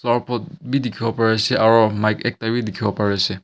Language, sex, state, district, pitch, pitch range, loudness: Nagamese, male, Nagaland, Kohima, 115 Hz, 110-120 Hz, -19 LUFS